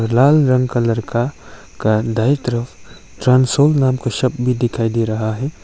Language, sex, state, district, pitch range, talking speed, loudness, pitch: Hindi, male, Arunachal Pradesh, Longding, 115-130 Hz, 170 wpm, -16 LUFS, 125 Hz